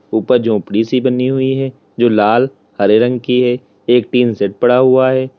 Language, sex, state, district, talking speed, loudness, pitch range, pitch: Hindi, male, Uttar Pradesh, Lalitpur, 200 wpm, -13 LUFS, 110-130 Hz, 125 Hz